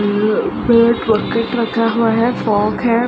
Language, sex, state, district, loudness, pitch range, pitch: Hindi, female, Bihar, Gaya, -15 LUFS, 215-235 Hz, 230 Hz